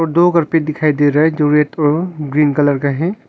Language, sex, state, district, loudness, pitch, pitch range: Hindi, male, Arunachal Pradesh, Longding, -14 LUFS, 150 Hz, 145-165 Hz